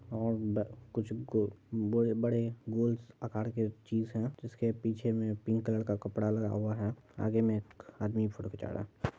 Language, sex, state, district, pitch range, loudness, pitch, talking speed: Hindi, male, Bihar, Madhepura, 105-115 Hz, -34 LUFS, 110 Hz, 170 wpm